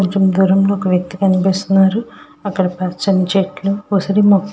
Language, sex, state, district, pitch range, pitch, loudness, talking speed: Telugu, female, Andhra Pradesh, Srikakulam, 185-200 Hz, 195 Hz, -15 LUFS, 160 wpm